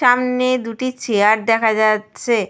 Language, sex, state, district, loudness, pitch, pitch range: Bengali, female, Jharkhand, Sahebganj, -17 LUFS, 230 Hz, 215-250 Hz